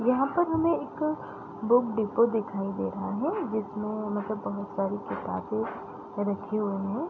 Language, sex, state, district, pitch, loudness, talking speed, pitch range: Hindi, female, Bihar, East Champaran, 215 Hz, -29 LUFS, 170 wpm, 205-265 Hz